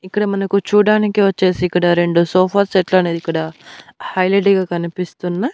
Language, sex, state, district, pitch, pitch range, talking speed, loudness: Telugu, female, Andhra Pradesh, Annamaya, 185 Hz, 175-200 Hz, 140 wpm, -16 LUFS